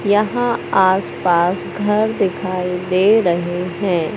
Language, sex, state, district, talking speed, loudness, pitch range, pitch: Hindi, male, Madhya Pradesh, Katni, 115 wpm, -17 LUFS, 180-205 Hz, 185 Hz